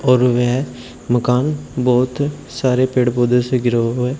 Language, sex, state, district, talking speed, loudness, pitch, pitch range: Hindi, male, Uttar Pradesh, Shamli, 155 wpm, -17 LUFS, 125 Hz, 120-130 Hz